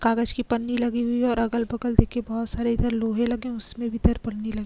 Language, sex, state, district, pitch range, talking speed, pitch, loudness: Hindi, female, Goa, North and South Goa, 230-240 Hz, 285 wpm, 235 Hz, -25 LUFS